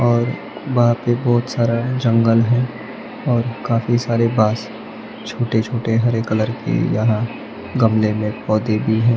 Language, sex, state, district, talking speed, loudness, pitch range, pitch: Hindi, male, Maharashtra, Gondia, 145 wpm, -18 LUFS, 110-120 Hz, 115 Hz